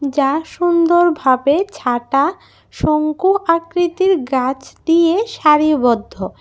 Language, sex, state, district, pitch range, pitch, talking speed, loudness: Bengali, female, Tripura, West Tripura, 275-345 Hz, 310 Hz, 85 wpm, -16 LUFS